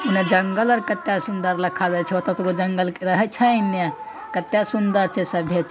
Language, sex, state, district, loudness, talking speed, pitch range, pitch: Angika, male, Bihar, Begusarai, -21 LUFS, 180 wpm, 180-215 Hz, 190 Hz